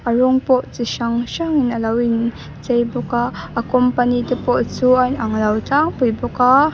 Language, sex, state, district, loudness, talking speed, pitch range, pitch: Mizo, female, Mizoram, Aizawl, -18 LUFS, 205 wpm, 235-255 Hz, 245 Hz